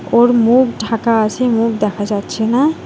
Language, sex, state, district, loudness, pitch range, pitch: Bengali, female, West Bengal, Alipurduar, -14 LUFS, 220-240 Hz, 230 Hz